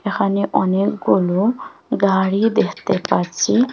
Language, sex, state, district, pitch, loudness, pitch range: Bengali, female, Assam, Hailakandi, 200 Hz, -18 LUFS, 190-225 Hz